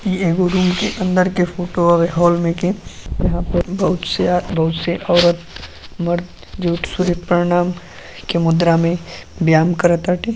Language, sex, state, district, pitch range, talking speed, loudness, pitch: Bhojpuri, female, Uttar Pradesh, Gorakhpur, 170-180 Hz, 160 wpm, -17 LUFS, 175 Hz